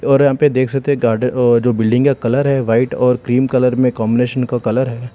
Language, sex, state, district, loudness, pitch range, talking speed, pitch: Hindi, male, Telangana, Hyderabad, -15 LUFS, 120-135 Hz, 255 wpm, 125 Hz